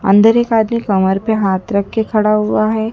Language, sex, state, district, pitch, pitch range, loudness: Hindi, female, Madhya Pradesh, Dhar, 215 Hz, 200-220 Hz, -14 LUFS